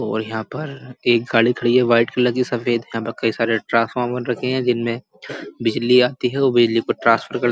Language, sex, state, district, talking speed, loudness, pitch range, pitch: Hindi, male, Uttar Pradesh, Muzaffarnagar, 225 wpm, -19 LUFS, 115-125 Hz, 120 Hz